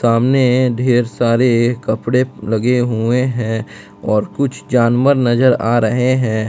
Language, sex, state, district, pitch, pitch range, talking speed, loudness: Hindi, male, Jharkhand, Palamu, 120 Hz, 115-125 Hz, 130 wpm, -15 LUFS